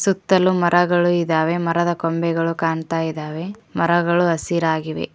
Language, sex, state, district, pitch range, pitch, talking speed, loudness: Kannada, female, Karnataka, Koppal, 165-175 Hz, 170 Hz, 105 wpm, -19 LUFS